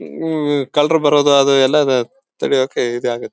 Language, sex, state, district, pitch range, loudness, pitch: Kannada, male, Karnataka, Bellary, 130-150 Hz, -15 LUFS, 140 Hz